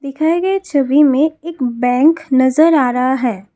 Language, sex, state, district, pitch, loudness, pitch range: Hindi, female, Assam, Kamrup Metropolitan, 280 Hz, -14 LUFS, 255-320 Hz